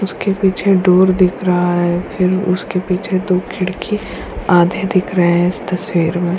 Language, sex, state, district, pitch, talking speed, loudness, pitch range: Hindi, female, Bihar, Kishanganj, 185 Hz, 170 wpm, -15 LUFS, 175-190 Hz